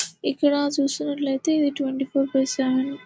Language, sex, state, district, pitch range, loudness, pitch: Telugu, female, Telangana, Nalgonda, 270-285 Hz, -23 LUFS, 275 Hz